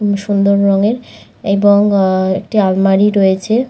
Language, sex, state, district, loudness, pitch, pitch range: Bengali, female, West Bengal, Malda, -12 LUFS, 200 Hz, 195-205 Hz